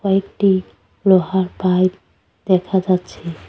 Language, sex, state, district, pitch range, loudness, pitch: Bengali, female, West Bengal, Cooch Behar, 185-190 Hz, -17 LUFS, 185 Hz